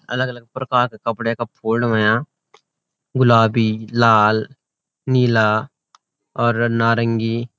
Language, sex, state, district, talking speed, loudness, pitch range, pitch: Garhwali, male, Uttarakhand, Uttarkashi, 105 wpm, -18 LUFS, 110-125 Hz, 115 Hz